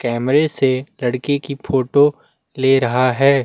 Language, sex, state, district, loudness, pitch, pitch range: Hindi, male, Chhattisgarh, Jashpur, -17 LUFS, 135 Hz, 130-140 Hz